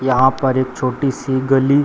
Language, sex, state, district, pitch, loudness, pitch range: Hindi, male, Bihar, Samastipur, 130 Hz, -17 LUFS, 130-135 Hz